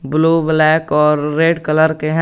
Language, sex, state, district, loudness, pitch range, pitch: Hindi, male, Jharkhand, Garhwa, -14 LUFS, 150-160 Hz, 155 Hz